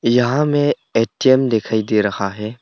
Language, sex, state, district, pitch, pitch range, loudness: Hindi, male, Arunachal Pradesh, Papum Pare, 115 Hz, 105-130 Hz, -17 LUFS